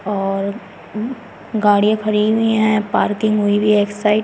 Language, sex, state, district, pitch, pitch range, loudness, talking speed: Hindi, female, Delhi, New Delhi, 210 Hz, 205-215 Hz, -17 LUFS, 170 wpm